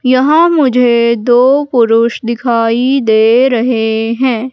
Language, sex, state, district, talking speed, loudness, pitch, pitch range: Hindi, female, Madhya Pradesh, Katni, 105 wpm, -10 LUFS, 240 Hz, 230-260 Hz